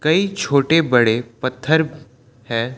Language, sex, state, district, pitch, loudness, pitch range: Hindi, male, Jharkhand, Ranchi, 135 Hz, -18 LUFS, 120-160 Hz